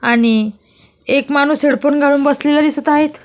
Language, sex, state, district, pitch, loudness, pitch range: Marathi, female, Maharashtra, Solapur, 285 Hz, -14 LUFS, 270-295 Hz